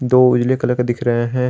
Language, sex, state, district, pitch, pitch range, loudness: Hindi, male, Jharkhand, Garhwa, 125 Hz, 120-125 Hz, -16 LUFS